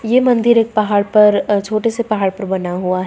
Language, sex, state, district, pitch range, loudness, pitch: Hindi, female, Bihar, Saharsa, 195-230 Hz, -15 LUFS, 210 Hz